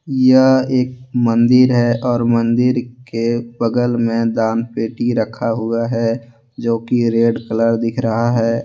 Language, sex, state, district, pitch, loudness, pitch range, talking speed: Hindi, male, Jharkhand, Deoghar, 115 Hz, -16 LUFS, 115-125 Hz, 140 wpm